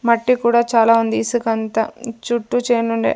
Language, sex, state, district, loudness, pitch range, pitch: Telugu, female, Andhra Pradesh, Sri Satya Sai, -17 LUFS, 230-240 Hz, 235 Hz